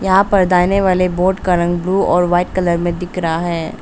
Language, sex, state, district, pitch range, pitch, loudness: Hindi, female, Arunachal Pradesh, Papum Pare, 175-185 Hz, 180 Hz, -15 LUFS